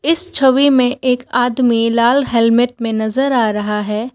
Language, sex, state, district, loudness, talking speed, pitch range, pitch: Hindi, female, Assam, Kamrup Metropolitan, -14 LUFS, 175 wpm, 230-265 Hz, 245 Hz